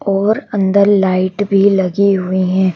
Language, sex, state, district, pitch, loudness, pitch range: Hindi, female, Madhya Pradesh, Bhopal, 195 Hz, -13 LUFS, 185-200 Hz